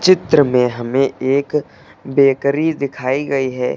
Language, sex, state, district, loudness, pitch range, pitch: Hindi, male, Uttar Pradesh, Lucknow, -16 LUFS, 130-145 Hz, 135 Hz